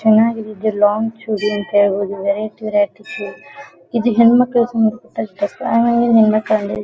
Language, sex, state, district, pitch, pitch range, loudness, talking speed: Kannada, female, Karnataka, Dharwad, 220 Hz, 205-235 Hz, -16 LUFS, 105 wpm